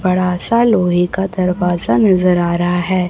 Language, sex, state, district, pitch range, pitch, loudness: Hindi, female, Chhattisgarh, Raipur, 175-190 Hz, 180 Hz, -15 LUFS